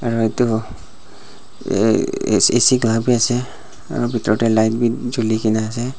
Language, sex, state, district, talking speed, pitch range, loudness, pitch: Nagamese, male, Nagaland, Dimapur, 130 wpm, 110-120 Hz, -17 LUFS, 115 Hz